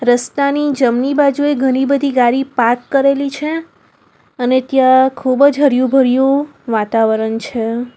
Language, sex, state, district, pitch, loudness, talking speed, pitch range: Gujarati, female, Gujarat, Valsad, 265 Hz, -14 LUFS, 130 wpm, 245-280 Hz